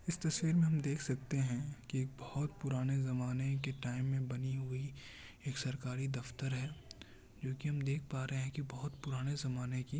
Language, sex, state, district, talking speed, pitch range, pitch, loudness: Hindi, male, Bihar, Kishanganj, 200 wpm, 130-145 Hz, 135 Hz, -39 LUFS